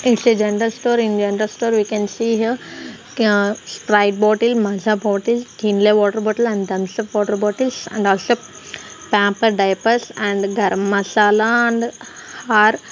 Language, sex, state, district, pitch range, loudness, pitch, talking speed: English, female, Punjab, Kapurthala, 205-230 Hz, -17 LUFS, 215 Hz, 150 wpm